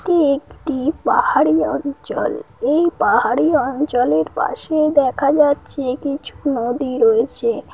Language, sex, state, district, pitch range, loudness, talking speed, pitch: Bengali, female, West Bengal, Paschim Medinipur, 255-310 Hz, -18 LUFS, 100 wpm, 285 Hz